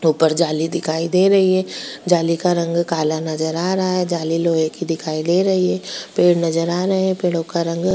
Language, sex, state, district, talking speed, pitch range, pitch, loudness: Hindi, female, Bihar, Kishanganj, 225 wpm, 160-180 Hz, 170 Hz, -18 LUFS